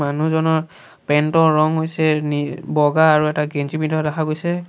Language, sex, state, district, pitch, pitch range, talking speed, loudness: Assamese, male, Assam, Sonitpur, 155 Hz, 150-160 Hz, 165 wpm, -18 LUFS